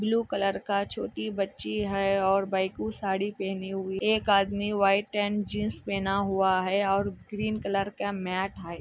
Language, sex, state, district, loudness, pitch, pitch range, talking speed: Hindi, female, Andhra Pradesh, Anantapur, -28 LUFS, 195 Hz, 195-205 Hz, 175 wpm